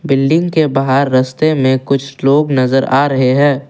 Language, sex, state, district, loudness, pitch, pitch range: Hindi, male, Assam, Kamrup Metropolitan, -13 LUFS, 135 Hz, 130-145 Hz